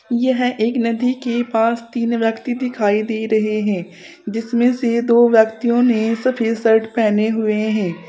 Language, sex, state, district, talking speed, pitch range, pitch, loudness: Hindi, female, Uttar Pradesh, Saharanpur, 155 wpm, 220-240 Hz, 225 Hz, -17 LUFS